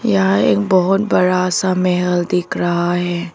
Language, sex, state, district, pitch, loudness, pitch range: Hindi, female, Arunachal Pradesh, Papum Pare, 180 Hz, -16 LUFS, 175-190 Hz